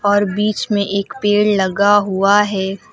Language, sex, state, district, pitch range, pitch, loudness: Hindi, female, Uttar Pradesh, Lucknow, 195-205 Hz, 205 Hz, -15 LUFS